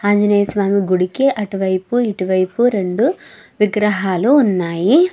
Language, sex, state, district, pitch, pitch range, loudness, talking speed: Telugu, female, Andhra Pradesh, Krishna, 205 Hz, 185-240 Hz, -16 LUFS, 95 wpm